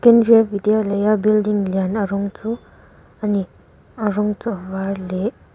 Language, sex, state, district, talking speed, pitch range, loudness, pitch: Mizo, female, Mizoram, Aizawl, 160 wpm, 200-215 Hz, -19 LUFS, 210 Hz